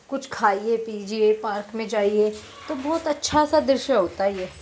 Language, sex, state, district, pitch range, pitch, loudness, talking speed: Hindi, female, Uttar Pradesh, Deoria, 210-280 Hz, 225 Hz, -23 LUFS, 180 wpm